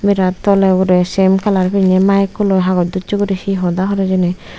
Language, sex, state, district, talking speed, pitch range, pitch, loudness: Chakma, female, Tripura, Unakoti, 195 wpm, 185-195 Hz, 190 Hz, -14 LUFS